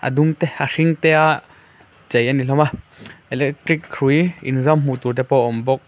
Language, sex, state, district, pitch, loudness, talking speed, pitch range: Mizo, male, Mizoram, Aizawl, 145 Hz, -18 LUFS, 215 wpm, 130-155 Hz